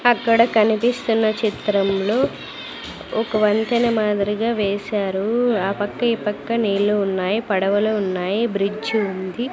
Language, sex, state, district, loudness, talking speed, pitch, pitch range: Telugu, female, Andhra Pradesh, Sri Satya Sai, -20 LUFS, 105 wpm, 215 Hz, 200-230 Hz